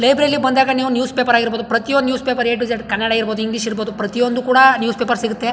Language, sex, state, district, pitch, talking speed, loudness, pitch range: Kannada, male, Karnataka, Chamarajanagar, 240 Hz, 240 wpm, -16 LUFS, 230-260 Hz